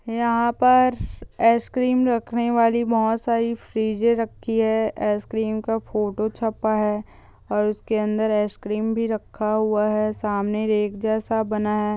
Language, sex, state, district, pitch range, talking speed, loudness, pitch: Hindi, female, Andhra Pradesh, Chittoor, 215-230 Hz, 135 wpm, -22 LUFS, 220 Hz